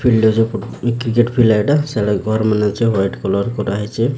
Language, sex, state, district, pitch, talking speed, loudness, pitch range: Odia, male, Odisha, Sambalpur, 110 Hz, 185 wpm, -16 LUFS, 105-120 Hz